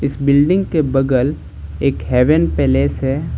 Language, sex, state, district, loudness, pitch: Hindi, male, Jharkhand, Ranchi, -16 LUFS, 135 Hz